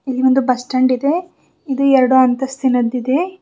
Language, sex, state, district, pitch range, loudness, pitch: Kannada, female, Karnataka, Bidar, 255-275 Hz, -16 LUFS, 260 Hz